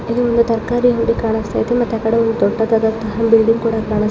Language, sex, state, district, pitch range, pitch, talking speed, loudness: Kannada, female, Karnataka, Mysore, 220-230 Hz, 225 Hz, 190 wpm, -16 LUFS